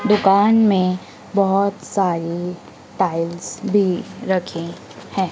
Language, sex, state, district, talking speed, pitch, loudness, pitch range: Hindi, female, Madhya Pradesh, Dhar, 90 wpm, 190 Hz, -19 LUFS, 175-200 Hz